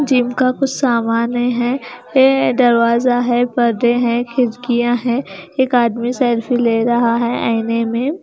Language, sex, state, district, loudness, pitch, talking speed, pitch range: Hindi, female, Himachal Pradesh, Shimla, -16 LUFS, 240 Hz, 145 wpm, 235-250 Hz